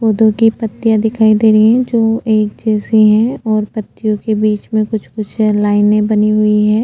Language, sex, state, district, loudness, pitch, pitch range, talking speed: Hindi, female, Uttarakhand, Tehri Garhwal, -13 LUFS, 215 Hz, 215-220 Hz, 195 wpm